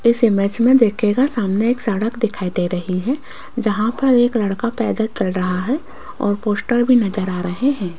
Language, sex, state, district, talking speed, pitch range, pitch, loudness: Hindi, female, Rajasthan, Jaipur, 195 wpm, 195-240 Hz, 220 Hz, -18 LUFS